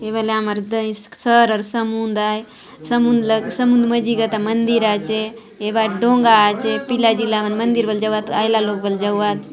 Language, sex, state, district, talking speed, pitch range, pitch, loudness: Halbi, female, Chhattisgarh, Bastar, 180 wpm, 215-230 Hz, 220 Hz, -17 LUFS